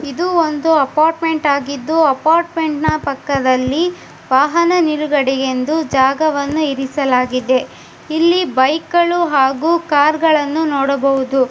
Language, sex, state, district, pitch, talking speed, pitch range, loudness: Kannada, female, Karnataka, Bijapur, 295 Hz, 85 wpm, 270-320 Hz, -15 LUFS